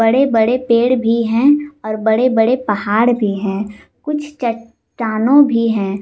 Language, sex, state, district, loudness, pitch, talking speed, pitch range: Hindi, female, Jharkhand, Palamu, -15 LUFS, 230 Hz, 150 wpm, 215-255 Hz